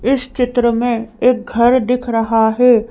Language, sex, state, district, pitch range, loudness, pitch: Hindi, female, Madhya Pradesh, Bhopal, 230-250 Hz, -15 LUFS, 240 Hz